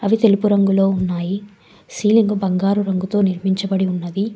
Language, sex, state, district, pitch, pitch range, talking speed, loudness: Telugu, female, Telangana, Hyderabad, 195 Hz, 190-205 Hz, 125 wpm, -18 LUFS